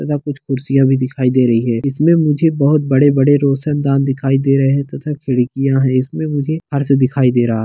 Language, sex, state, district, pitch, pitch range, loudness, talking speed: Hindi, male, Bihar, Darbhanga, 135 Hz, 130-145 Hz, -15 LUFS, 220 wpm